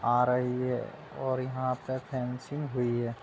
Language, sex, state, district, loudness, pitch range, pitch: Hindi, male, Uttar Pradesh, Budaun, -31 LUFS, 125-130 Hz, 125 Hz